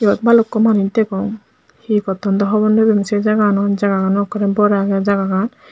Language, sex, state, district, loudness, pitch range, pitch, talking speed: Chakma, male, Tripura, Unakoti, -15 LUFS, 200-215 Hz, 205 Hz, 170 wpm